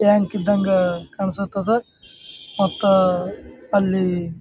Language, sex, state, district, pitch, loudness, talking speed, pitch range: Kannada, male, Karnataka, Bijapur, 195 Hz, -20 LUFS, 70 wpm, 185-200 Hz